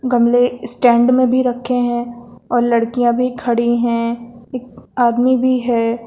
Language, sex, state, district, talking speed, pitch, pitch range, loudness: Hindi, female, Uttar Pradesh, Lucknow, 150 wpm, 240 Hz, 235-250 Hz, -16 LUFS